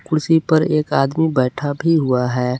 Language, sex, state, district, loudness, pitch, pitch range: Hindi, male, Jharkhand, Palamu, -17 LUFS, 150 Hz, 130-160 Hz